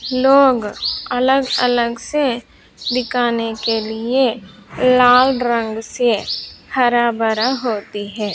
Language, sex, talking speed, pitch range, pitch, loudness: Hindi, female, 100 wpm, 225-255 Hz, 240 Hz, -17 LUFS